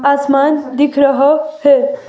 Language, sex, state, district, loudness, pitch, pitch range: Hindi, female, Himachal Pradesh, Shimla, -12 LUFS, 280 Hz, 275-290 Hz